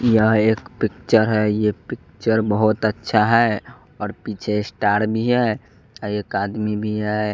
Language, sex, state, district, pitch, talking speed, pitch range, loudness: Hindi, male, Bihar, West Champaran, 110 Hz, 145 wpm, 105-110 Hz, -20 LUFS